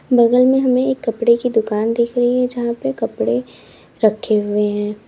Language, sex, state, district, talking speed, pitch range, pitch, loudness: Hindi, female, Uttar Pradesh, Lalitpur, 175 wpm, 210-250 Hz, 235 Hz, -17 LUFS